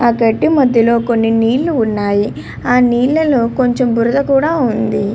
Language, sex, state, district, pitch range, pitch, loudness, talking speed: Telugu, female, Andhra Pradesh, Krishna, 225-260 Hz, 235 Hz, -13 LUFS, 150 wpm